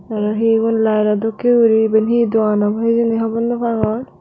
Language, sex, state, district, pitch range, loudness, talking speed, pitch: Chakma, female, Tripura, Dhalai, 215-230 Hz, -16 LUFS, 200 wpm, 225 Hz